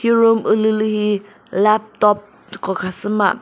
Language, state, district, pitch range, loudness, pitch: Chakhesang, Nagaland, Dimapur, 205-215 Hz, -17 LUFS, 210 Hz